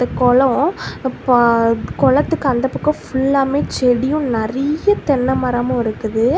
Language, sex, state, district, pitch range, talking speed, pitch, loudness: Tamil, female, Tamil Nadu, Kanyakumari, 245-280 Hz, 105 wpm, 260 Hz, -16 LUFS